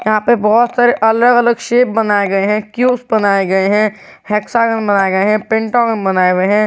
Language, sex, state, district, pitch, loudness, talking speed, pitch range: Hindi, male, Jharkhand, Garhwa, 215 Hz, -13 LUFS, 200 wpm, 200-235 Hz